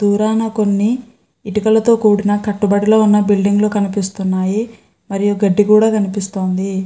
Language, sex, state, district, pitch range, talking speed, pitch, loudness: Telugu, female, Andhra Pradesh, Guntur, 200-215 Hz, 115 wpm, 205 Hz, -15 LUFS